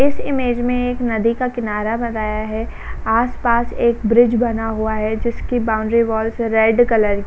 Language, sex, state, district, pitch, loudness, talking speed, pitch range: Hindi, female, Uttar Pradesh, Jalaun, 230 Hz, -18 LUFS, 180 wpm, 220-240 Hz